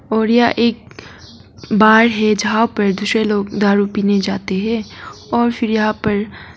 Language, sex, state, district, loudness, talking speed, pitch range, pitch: Hindi, female, Arunachal Pradesh, Papum Pare, -15 LUFS, 155 wpm, 200-225 Hz, 215 Hz